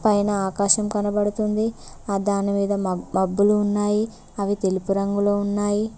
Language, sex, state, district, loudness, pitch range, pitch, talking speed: Telugu, female, Telangana, Mahabubabad, -22 LUFS, 200-210 Hz, 205 Hz, 120 wpm